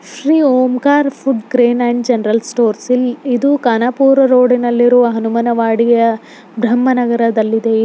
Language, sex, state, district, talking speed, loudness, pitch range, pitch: Kannada, female, Karnataka, Belgaum, 115 wpm, -13 LUFS, 230-255 Hz, 245 Hz